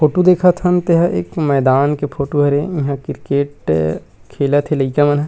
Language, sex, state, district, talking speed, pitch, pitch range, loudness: Chhattisgarhi, male, Chhattisgarh, Rajnandgaon, 180 wpm, 145 Hz, 140-160 Hz, -16 LUFS